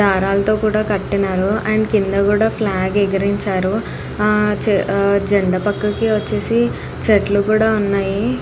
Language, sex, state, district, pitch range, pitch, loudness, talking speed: Telugu, female, Andhra Pradesh, Anantapur, 195-215 Hz, 205 Hz, -17 LUFS, 115 wpm